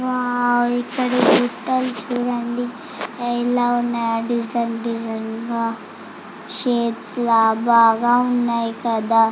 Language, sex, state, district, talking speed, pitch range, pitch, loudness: Telugu, female, Andhra Pradesh, Chittoor, 95 wpm, 230-245 Hz, 240 Hz, -20 LUFS